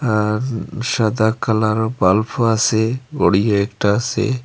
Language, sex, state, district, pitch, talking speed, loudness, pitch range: Bengali, male, Assam, Hailakandi, 110 Hz, 110 wpm, -18 LUFS, 105-120 Hz